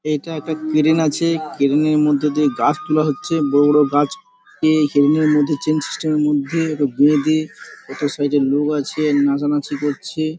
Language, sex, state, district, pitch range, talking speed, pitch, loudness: Bengali, male, West Bengal, Paschim Medinipur, 145-155 Hz, 180 wpm, 150 Hz, -18 LUFS